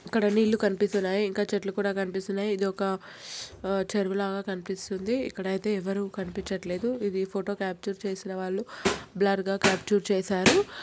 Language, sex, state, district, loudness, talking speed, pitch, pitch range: Telugu, female, Andhra Pradesh, Guntur, -28 LUFS, 125 wpm, 195 Hz, 190-205 Hz